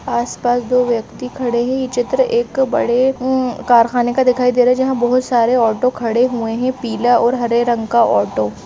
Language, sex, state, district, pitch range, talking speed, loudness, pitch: Hindi, female, Uttar Pradesh, Jalaun, 235-255 Hz, 210 wpm, -16 LUFS, 245 Hz